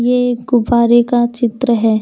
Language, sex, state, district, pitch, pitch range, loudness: Hindi, female, Jharkhand, Deoghar, 240 Hz, 235-245 Hz, -14 LUFS